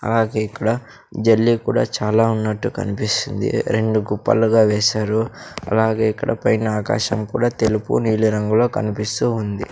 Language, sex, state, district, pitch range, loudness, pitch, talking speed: Telugu, male, Andhra Pradesh, Sri Satya Sai, 105-115 Hz, -19 LUFS, 110 Hz, 115 wpm